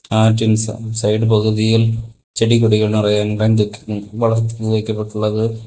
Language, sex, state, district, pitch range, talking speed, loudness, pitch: Tamil, male, Tamil Nadu, Kanyakumari, 105-115 Hz, 95 wpm, -16 LUFS, 110 Hz